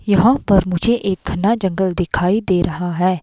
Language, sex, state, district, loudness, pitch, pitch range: Hindi, female, Himachal Pradesh, Shimla, -17 LUFS, 190 Hz, 180-205 Hz